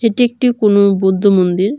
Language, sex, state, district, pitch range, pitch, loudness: Bengali, female, Tripura, Dhalai, 190-240 Hz, 200 Hz, -13 LUFS